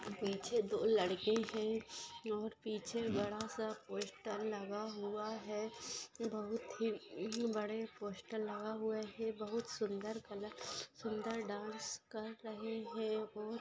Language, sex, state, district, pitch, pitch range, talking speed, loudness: Hindi, female, Maharashtra, Nagpur, 215 Hz, 210-225 Hz, 130 wpm, -42 LUFS